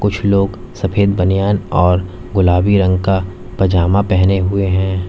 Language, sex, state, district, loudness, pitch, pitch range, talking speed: Hindi, male, Uttar Pradesh, Lalitpur, -15 LUFS, 95 Hz, 90-100 Hz, 140 wpm